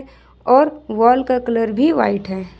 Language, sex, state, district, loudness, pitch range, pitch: Hindi, female, Jharkhand, Ranchi, -16 LUFS, 220-270 Hz, 245 Hz